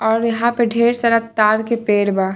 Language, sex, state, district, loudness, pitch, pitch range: Bhojpuri, female, Bihar, Saran, -16 LUFS, 230 Hz, 215-235 Hz